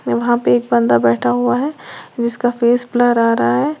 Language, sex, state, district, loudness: Hindi, female, Uttar Pradesh, Lalitpur, -15 LUFS